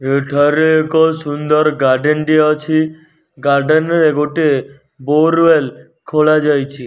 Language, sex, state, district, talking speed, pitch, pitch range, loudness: Odia, male, Odisha, Nuapada, 105 wpm, 150 Hz, 140-155 Hz, -13 LUFS